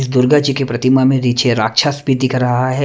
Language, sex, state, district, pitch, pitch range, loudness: Hindi, male, Punjab, Kapurthala, 130 Hz, 125-135 Hz, -14 LUFS